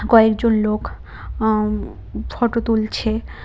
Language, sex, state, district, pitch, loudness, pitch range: Bengali, female, West Bengal, Cooch Behar, 220 Hz, -19 LUFS, 215-225 Hz